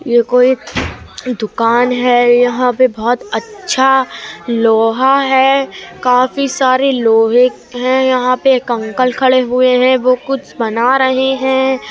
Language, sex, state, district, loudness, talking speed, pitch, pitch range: Hindi, female, Uttar Pradesh, Budaun, -12 LUFS, 130 wpm, 255 Hz, 240-265 Hz